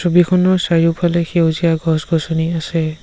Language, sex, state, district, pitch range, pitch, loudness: Assamese, male, Assam, Sonitpur, 160-175 Hz, 165 Hz, -16 LUFS